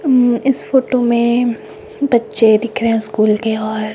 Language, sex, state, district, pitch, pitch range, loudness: Hindi, female, Himachal Pradesh, Shimla, 235 Hz, 220-245 Hz, -15 LUFS